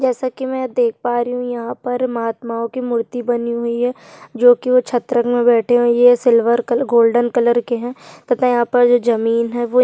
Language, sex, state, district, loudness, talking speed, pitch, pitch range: Hindi, female, Chhattisgarh, Sukma, -16 LUFS, 225 wpm, 240 Hz, 235-245 Hz